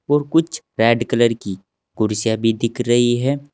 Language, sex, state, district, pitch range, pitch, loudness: Hindi, male, Uttar Pradesh, Saharanpur, 115-140 Hz, 120 Hz, -18 LUFS